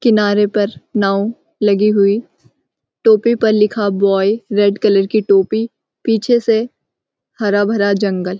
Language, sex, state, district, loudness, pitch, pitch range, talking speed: Hindi, female, Uttarakhand, Uttarkashi, -15 LUFS, 210 Hz, 200-225 Hz, 130 wpm